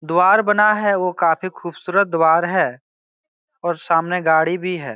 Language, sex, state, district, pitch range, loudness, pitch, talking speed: Hindi, male, Bihar, Supaul, 165-200 Hz, -17 LUFS, 180 Hz, 170 wpm